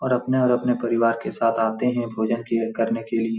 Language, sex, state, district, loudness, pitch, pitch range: Hindi, male, Bihar, Supaul, -22 LUFS, 115 Hz, 115-125 Hz